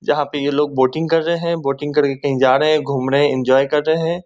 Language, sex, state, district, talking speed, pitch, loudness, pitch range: Hindi, male, West Bengal, Kolkata, 270 wpm, 145 Hz, -17 LUFS, 135-160 Hz